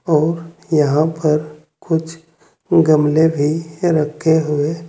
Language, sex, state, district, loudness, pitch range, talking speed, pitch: Hindi, male, Uttar Pradesh, Saharanpur, -16 LUFS, 150-165 Hz, 100 wpm, 155 Hz